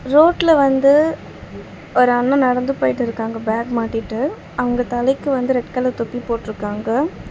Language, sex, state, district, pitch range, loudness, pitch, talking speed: Tamil, female, Tamil Nadu, Chennai, 230-275 Hz, -18 LUFS, 250 Hz, 125 wpm